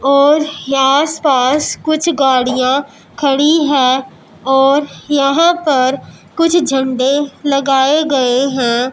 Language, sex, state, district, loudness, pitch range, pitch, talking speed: Hindi, male, Punjab, Pathankot, -13 LUFS, 265-295 Hz, 275 Hz, 100 wpm